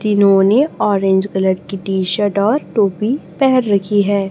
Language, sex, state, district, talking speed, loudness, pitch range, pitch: Hindi, female, Chhattisgarh, Raipur, 165 wpm, -15 LUFS, 195-215 Hz, 200 Hz